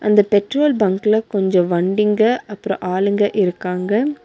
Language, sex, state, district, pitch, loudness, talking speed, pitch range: Tamil, female, Tamil Nadu, Nilgiris, 205 Hz, -17 LUFS, 115 wpm, 190-215 Hz